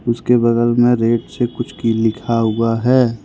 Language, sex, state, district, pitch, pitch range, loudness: Hindi, male, Jharkhand, Ranchi, 115 Hz, 115-120 Hz, -16 LUFS